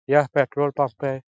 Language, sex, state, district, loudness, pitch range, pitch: Hindi, male, Bihar, Jahanabad, -22 LUFS, 135-145 Hz, 140 Hz